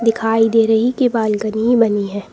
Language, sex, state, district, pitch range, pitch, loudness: Hindi, female, Uttar Pradesh, Lucknow, 215-230 Hz, 225 Hz, -16 LUFS